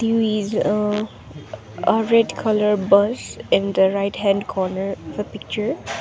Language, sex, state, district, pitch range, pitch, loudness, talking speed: English, female, Sikkim, Gangtok, 200-220 Hz, 210 Hz, -20 LUFS, 140 wpm